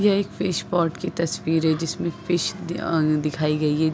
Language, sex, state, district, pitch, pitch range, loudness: Hindi, female, Uttar Pradesh, Deoria, 165 Hz, 155-180 Hz, -23 LUFS